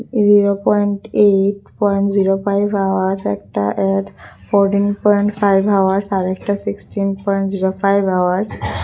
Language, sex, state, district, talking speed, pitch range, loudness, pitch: Bengali, female, Tripura, West Tripura, 140 wpm, 190-205 Hz, -16 LUFS, 195 Hz